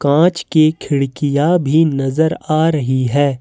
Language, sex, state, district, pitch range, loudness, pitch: Hindi, male, Jharkhand, Ranchi, 140-160 Hz, -15 LUFS, 150 Hz